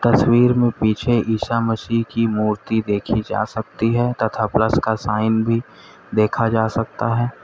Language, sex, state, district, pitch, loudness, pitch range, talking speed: Hindi, male, Uttar Pradesh, Lalitpur, 115 Hz, -19 LUFS, 110-115 Hz, 160 wpm